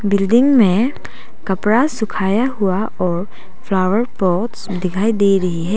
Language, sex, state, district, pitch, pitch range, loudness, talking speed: Hindi, female, Arunachal Pradesh, Papum Pare, 205 Hz, 185-225 Hz, -17 LUFS, 125 wpm